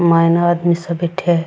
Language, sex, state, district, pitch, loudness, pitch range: Rajasthani, female, Rajasthan, Churu, 170 Hz, -16 LUFS, 170-175 Hz